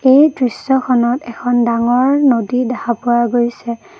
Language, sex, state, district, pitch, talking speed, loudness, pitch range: Assamese, female, Assam, Kamrup Metropolitan, 245 Hz, 120 wpm, -14 LUFS, 235-260 Hz